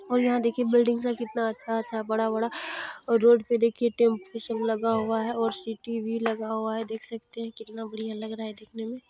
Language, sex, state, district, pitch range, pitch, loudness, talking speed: Hindi, female, Bihar, Jamui, 220-235 Hz, 225 Hz, -27 LUFS, 225 wpm